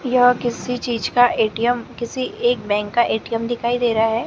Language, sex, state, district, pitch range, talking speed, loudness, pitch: Hindi, female, Maharashtra, Gondia, 230-245 Hz, 195 wpm, -19 LUFS, 240 Hz